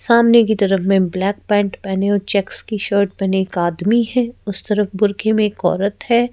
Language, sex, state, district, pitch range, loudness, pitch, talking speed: Hindi, female, Madhya Pradesh, Bhopal, 195-220 Hz, -17 LUFS, 205 Hz, 210 wpm